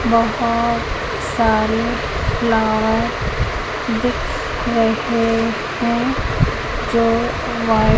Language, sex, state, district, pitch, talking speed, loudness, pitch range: Hindi, female, Madhya Pradesh, Katni, 230 Hz, 70 wpm, -18 LUFS, 225-235 Hz